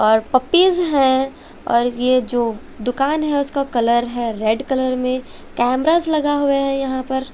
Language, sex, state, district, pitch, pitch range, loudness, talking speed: Hindi, female, Chhattisgarh, Raipur, 260 Hz, 240-280 Hz, -18 LUFS, 165 wpm